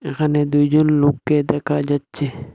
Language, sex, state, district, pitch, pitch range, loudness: Bengali, male, Assam, Hailakandi, 145 Hz, 145-150 Hz, -18 LUFS